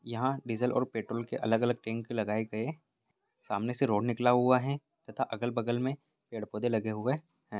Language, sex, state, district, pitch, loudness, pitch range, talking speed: Hindi, male, Bihar, Purnia, 120 Hz, -32 LUFS, 110-130 Hz, 205 wpm